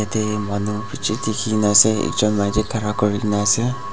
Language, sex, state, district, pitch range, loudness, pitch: Nagamese, male, Nagaland, Dimapur, 100-110 Hz, -19 LUFS, 105 Hz